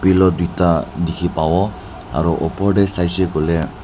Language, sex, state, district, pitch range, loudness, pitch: Nagamese, male, Nagaland, Dimapur, 80-95 Hz, -18 LUFS, 90 Hz